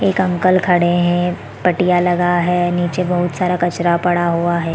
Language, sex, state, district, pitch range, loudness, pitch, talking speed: Hindi, female, Chhattisgarh, Bilaspur, 175-180 Hz, -16 LUFS, 175 Hz, 175 wpm